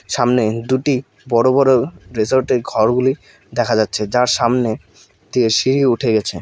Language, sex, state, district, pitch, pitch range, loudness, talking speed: Bengali, male, West Bengal, Alipurduar, 120 Hz, 110-130 Hz, -17 LUFS, 130 wpm